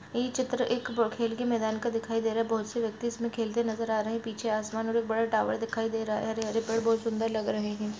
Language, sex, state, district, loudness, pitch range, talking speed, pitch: Angika, female, Bihar, Madhepura, -30 LUFS, 220-230 Hz, 280 wpm, 225 Hz